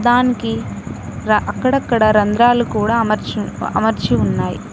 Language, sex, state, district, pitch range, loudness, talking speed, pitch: Telugu, female, Telangana, Mahabubabad, 215-245 Hz, -16 LUFS, 100 wpm, 235 Hz